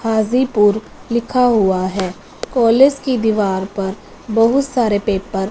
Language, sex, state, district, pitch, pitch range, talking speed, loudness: Hindi, female, Punjab, Fazilka, 220 Hz, 195-240 Hz, 130 wpm, -16 LUFS